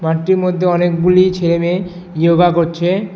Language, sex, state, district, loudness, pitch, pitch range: Bengali, male, West Bengal, Alipurduar, -14 LUFS, 175 Hz, 170-180 Hz